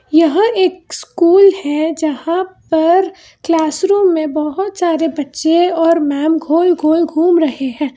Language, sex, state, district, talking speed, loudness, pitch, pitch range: Hindi, female, Karnataka, Bangalore, 135 wpm, -14 LUFS, 330 Hz, 310-360 Hz